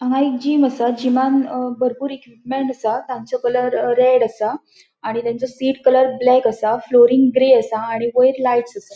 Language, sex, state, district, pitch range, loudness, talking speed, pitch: Konkani, female, Goa, North and South Goa, 240-260 Hz, -17 LUFS, 165 wpm, 250 Hz